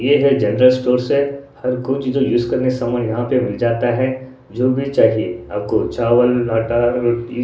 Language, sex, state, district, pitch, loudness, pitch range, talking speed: Hindi, male, Odisha, Sambalpur, 125 Hz, -17 LUFS, 120-130 Hz, 200 wpm